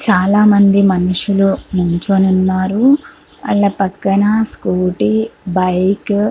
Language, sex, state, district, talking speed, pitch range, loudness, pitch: Telugu, female, Andhra Pradesh, Krishna, 95 wpm, 185-205 Hz, -13 LUFS, 195 Hz